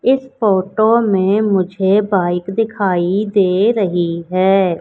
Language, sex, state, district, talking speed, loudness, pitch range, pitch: Hindi, female, Madhya Pradesh, Katni, 110 wpm, -15 LUFS, 185-215 Hz, 195 Hz